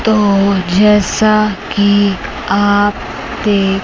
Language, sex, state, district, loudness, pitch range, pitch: Hindi, female, Chandigarh, Chandigarh, -12 LUFS, 200-210 Hz, 205 Hz